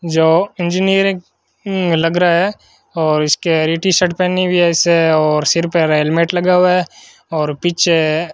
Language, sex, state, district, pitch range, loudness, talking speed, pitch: Hindi, male, Rajasthan, Bikaner, 160-180 Hz, -14 LUFS, 160 wpm, 170 Hz